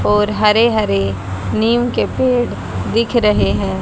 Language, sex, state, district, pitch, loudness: Hindi, female, Haryana, Charkhi Dadri, 210 Hz, -16 LUFS